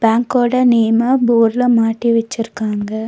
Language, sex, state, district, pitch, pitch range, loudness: Tamil, female, Tamil Nadu, Nilgiris, 230 Hz, 225-245 Hz, -15 LUFS